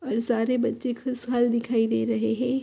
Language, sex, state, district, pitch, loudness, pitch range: Hindi, female, Uttar Pradesh, Hamirpur, 240 Hz, -25 LUFS, 225-250 Hz